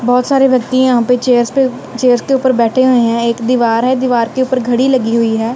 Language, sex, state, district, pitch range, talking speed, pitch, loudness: Hindi, female, Punjab, Kapurthala, 235-260 Hz, 250 wpm, 250 Hz, -12 LUFS